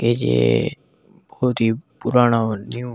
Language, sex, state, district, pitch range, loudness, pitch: Hindi, male, Delhi, New Delhi, 110-125 Hz, -20 LUFS, 115 Hz